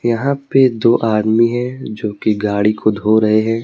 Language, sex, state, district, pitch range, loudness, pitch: Hindi, male, Jharkhand, Deoghar, 110-120 Hz, -15 LUFS, 110 Hz